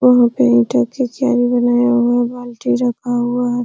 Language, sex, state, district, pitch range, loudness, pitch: Hindi, female, Uttar Pradesh, Hamirpur, 240-245 Hz, -15 LUFS, 245 Hz